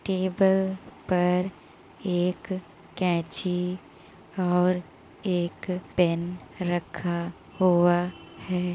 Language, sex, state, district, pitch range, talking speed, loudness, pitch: Hindi, female, Uttar Pradesh, Muzaffarnagar, 175-185 Hz, 70 wpm, -27 LUFS, 180 Hz